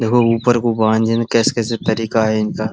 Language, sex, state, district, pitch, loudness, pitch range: Hindi, male, Uttar Pradesh, Muzaffarnagar, 115 Hz, -16 LUFS, 110-115 Hz